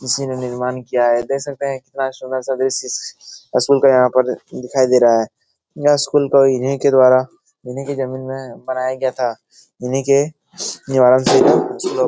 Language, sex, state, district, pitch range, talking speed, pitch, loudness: Hindi, male, Bihar, Jahanabad, 125-140 Hz, 180 wpm, 130 Hz, -17 LUFS